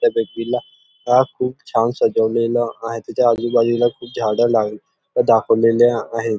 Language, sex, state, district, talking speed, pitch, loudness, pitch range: Marathi, male, Maharashtra, Nagpur, 130 wpm, 115 Hz, -18 LUFS, 115-120 Hz